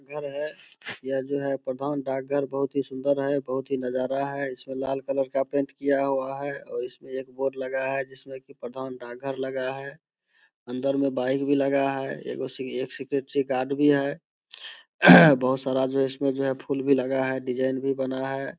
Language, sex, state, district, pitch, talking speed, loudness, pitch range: Hindi, male, Bihar, Saharsa, 135 Hz, 190 wpm, -26 LUFS, 130-140 Hz